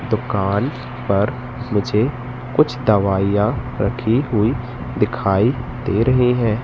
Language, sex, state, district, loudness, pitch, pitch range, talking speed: Hindi, male, Madhya Pradesh, Katni, -19 LUFS, 120 Hz, 105-125 Hz, 100 wpm